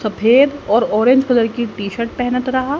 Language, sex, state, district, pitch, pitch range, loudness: Hindi, female, Haryana, Jhajjar, 240 Hz, 225-260 Hz, -15 LUFS